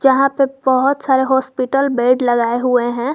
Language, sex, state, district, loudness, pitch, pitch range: Hindi, female, Jharkhand, Garhwa, -15 LUFS, 265 Hz, 245-275 Hz